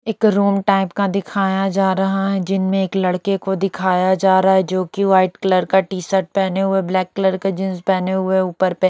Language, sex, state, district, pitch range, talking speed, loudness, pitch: Hindi, female, Bihar, Katihar, 185-195 Hz, 225 wpm, -17 LUFS, 190 Hz